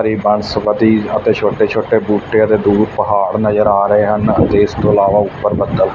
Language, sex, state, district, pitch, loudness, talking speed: Punjabi, male, Punjab, Fazilka, 105 Hz, -13 LUFS, 180 wpm